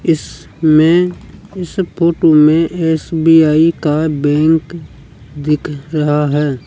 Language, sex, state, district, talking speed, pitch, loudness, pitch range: Hindi, male, Rajasthan, Jaipur, 90 wpm, 160 Hz, -13 LUFS, 150-165 Hz